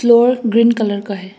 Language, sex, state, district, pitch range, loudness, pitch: Hindi, female, Assam, Hailakandi, 205-235 Hz, -14 LUFS, 225 Hz